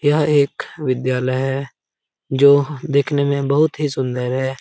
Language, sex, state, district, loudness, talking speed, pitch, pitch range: Hindi, male, Bihar, Lakhisarai, -18 LUFS, 170 wpm, 140 Hz, 130-145 Hz